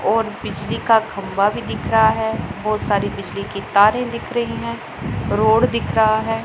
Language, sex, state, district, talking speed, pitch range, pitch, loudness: Hindi, female, Punjab, Pathankot, 185 wpm, 215-225 Hz, 220 Hz, -19 LUFS